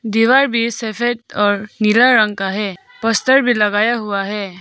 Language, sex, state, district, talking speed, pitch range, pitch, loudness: Hindi, female, Arunachal Pradesh, Papum Pare, 170 wpm, 205-240 Hz, 220 Hz, -15 LUFS